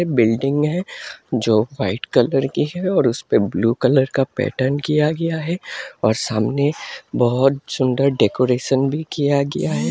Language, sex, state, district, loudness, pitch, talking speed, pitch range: Hindi, male, Assam, Hailakandi, -19 LUFS, 135 Hz, 150 wpm, 120-150 Hz